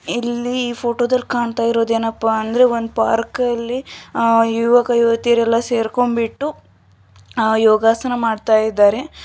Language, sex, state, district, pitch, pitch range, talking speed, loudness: Kannada, female, Karnataka, Shimoga, 230 Hz, 225-240 Hz, 85 wpm, -17 LUFS